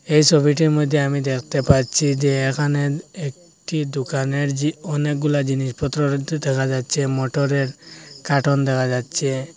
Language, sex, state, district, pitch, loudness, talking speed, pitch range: Bengali, male, Assam, Hailakandi, 140 Hz, -20 LUFS, 125 wpm, 135-150 Hz